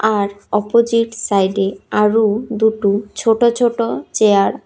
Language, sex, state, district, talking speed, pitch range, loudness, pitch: Bengali, female, Tripura, West Tripura, 115 wpm, 205-230 Hz, -16 LUFS, 215 Hz